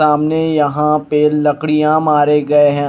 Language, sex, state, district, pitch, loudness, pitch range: Hindi, male, Punjab, Kapurthala, 150 Hz, -13 LUFS, 150-155 Hz